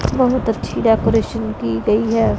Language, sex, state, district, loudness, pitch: Hindi, female, Punjab, Pathankot, -17 LUFS, 225 Hz